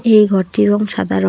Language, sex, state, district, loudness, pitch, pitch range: Bengali, female, West Bengal, Alipurduar, -14 LUFS, 205 Hz, 135-210 Hz